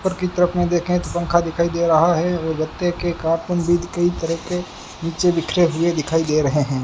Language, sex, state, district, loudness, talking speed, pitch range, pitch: Hindi, male, Rajasthan, Bikaner, -20 LUFS, 230 wpm, 165-175 Hz, 170 Hz